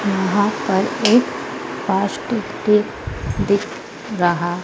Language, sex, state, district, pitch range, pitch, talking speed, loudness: Hindi, female, Madhya Pradesh, Dhar, 190-215 Hz, 205 Hz, 90 wpm, -19 LUFS